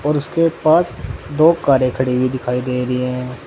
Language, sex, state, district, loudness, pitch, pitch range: Hindi, male, Uttar Pradesh, Saharanpur, -17 LUFS, 130 Hz, 125-155 Hz